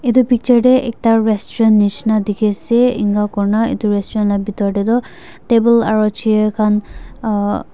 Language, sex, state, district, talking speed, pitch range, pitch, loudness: Nagamese, female, Nagaland, Dimapur, 155 wpm, 210-235 Hz, 215 Hz, -15 LUFS